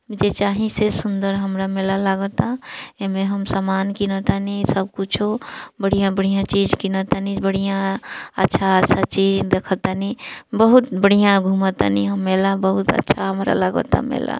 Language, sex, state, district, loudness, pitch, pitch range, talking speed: Bhojpuri, female, Bihar, East Champaran, -19 LUFS, 195 Hz, 190-200 Hz, 140 wpm